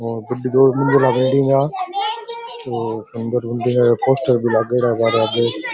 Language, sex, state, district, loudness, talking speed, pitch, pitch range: Rajasthani, male, Rajasthan, Nagaur, -17 LUFS, 135 wpm, 125 Hz, 115-135 Hz